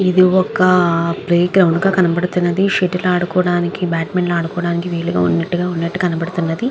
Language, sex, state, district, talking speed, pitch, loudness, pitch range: Telugu, female, Andhra Pradesh, Guntur, 125 wpm, 175 Hz, -16 LUFS, 170-185 Hz